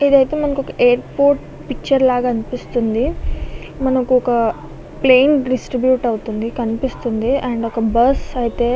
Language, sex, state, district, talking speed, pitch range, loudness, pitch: Telugu, female, Andhra Pradesh, Visakhapatnam, 105 wpm, 235-265 Hz, -17 LUFS, 250 Hz